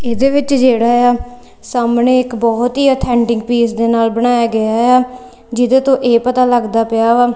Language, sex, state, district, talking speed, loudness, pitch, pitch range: Punjabi, female, Punjab, Kapurthala, 195 wpm, -13 LUFS, 240 Hz, 235-250 Hz